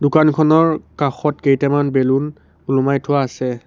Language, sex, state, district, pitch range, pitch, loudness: Assamese, male, Assam, Sonitpur, 135-150 Hz, 145 Hz, -17 LUFS